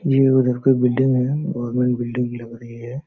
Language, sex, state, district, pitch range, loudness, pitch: Hindi, male, Jharkhand, Sahebganj, 120-135 Hz, -19 LUFS, 125 Hz